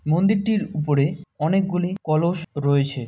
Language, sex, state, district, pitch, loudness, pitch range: Bengali, male, West Bengal, Malda, 165 Hz, -22 LUFS, 145-190 Hz